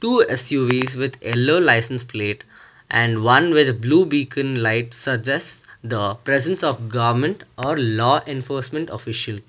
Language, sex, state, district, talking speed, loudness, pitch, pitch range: English, male, Karnataka, Bangalore, 140 wpm, -20 LUFS, 125 Hz, 115-140 Hz